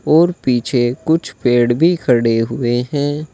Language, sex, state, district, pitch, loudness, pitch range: Hindi, male, Uttar Pradesh, Saharanpur, 125 Hz, -16 LUFS, 120-155 Hz